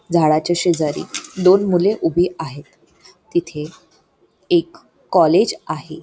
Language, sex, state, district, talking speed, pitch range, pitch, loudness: Marathi, female, Maharashtra, Pune, 100 wpm, 160-190 Hz, 175 Hz, -18 LUFS